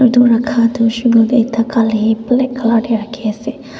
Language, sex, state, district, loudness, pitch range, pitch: Nagamese, female, Nagaland, Dimapur, -14 LUFS, 225-245 Hz, 230 Hz